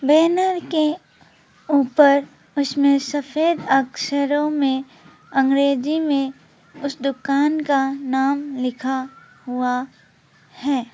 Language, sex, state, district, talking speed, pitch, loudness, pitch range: Hindi, female, West Bengal, Alipurduar, 90 wpm, 280 Hz, -20 LUFS, 270-295 Hz